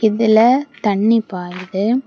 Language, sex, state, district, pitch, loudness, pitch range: Tamil, female, Tamil Nadu, Kanyakumari, 220 Hz, -15 LUFS, 195-235 Hz